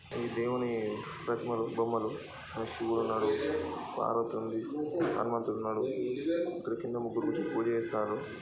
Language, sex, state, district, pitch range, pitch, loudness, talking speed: Telugu, male, Andhra Pradesh, Chittoor, 110-120 Hz, 115 Hz, -34 LUFS, 115 wpm